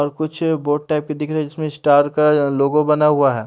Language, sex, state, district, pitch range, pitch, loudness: Hindi, male, Haryana, Charkhi Dadri, 145-155 Hz, 150 Hz, -17 LUFS